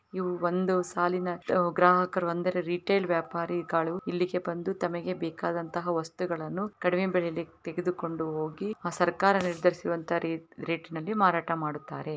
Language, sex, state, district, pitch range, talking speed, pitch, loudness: Kannada, female, Karnataka, Raichur, 165-180 Hz, 105 wpm, 175 Hz, -29 LUFS